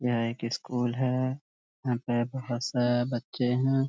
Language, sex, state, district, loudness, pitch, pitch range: Hindi, male, Bihar, Muzaffarpur, -29 LUFS, 125 Hz, 120-130 Hz